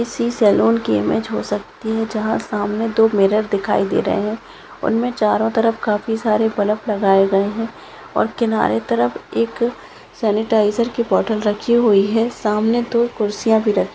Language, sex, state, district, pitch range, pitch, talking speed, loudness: Hindi, female, Maharashtra, Sindhudurg, 205-225 Hz, 215 Hz, 170 wpm, -18 LUFS